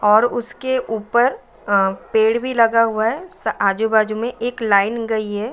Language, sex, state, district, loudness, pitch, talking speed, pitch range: Hindi, female, Bihar, Saran, -18 LUFS, 225 Hz, 185 wpm, 215-240 Hz